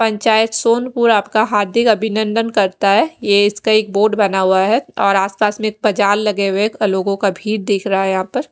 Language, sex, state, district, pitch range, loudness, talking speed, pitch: Hindi, female, Odisha, Khordha, 200-220 Hz, -15 LUFS, 195 wpm, 210 Hz